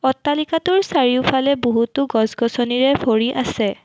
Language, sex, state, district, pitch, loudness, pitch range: Assamese, female, Assam, Kamrup Metropolitan, 255 Hz, -18 LUFS, 235-280 Hz